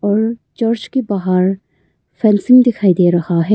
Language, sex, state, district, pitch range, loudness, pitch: Hindi, female, Arunachal Pradesh, Papum Pare, 180-230 Hz, -14 LUFS, 200 Hz